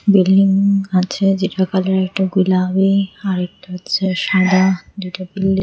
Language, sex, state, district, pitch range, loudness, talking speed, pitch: Bengali, female, Tripura, West Tripura, 185-195 Hz, -16 LUFS, 140 wpm, 190 Hz